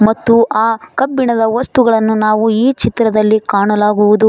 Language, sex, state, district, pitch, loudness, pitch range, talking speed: Kannada, female, Karnataka, Koppal, 220 Hz, -12 LUFS, 215-230 Hz, 110 wpm